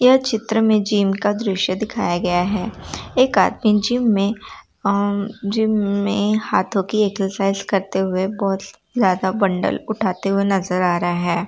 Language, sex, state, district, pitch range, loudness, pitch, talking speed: Hindi, female, Bihar, Darbhanga, 190-215 Hz, -19 LUFS, 200 Hz, 155 wpm